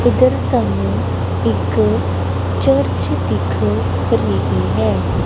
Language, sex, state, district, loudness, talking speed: Punjabi, female, Punjab, Kapurthala, -17 LUFS, 80 wpm